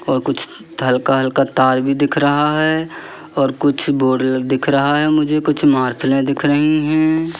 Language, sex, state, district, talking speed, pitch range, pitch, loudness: Hindi, male, Madhya Pradesh, Katni, 160 wpm, 135-150 Hz, 145 Hz, -16 LUFS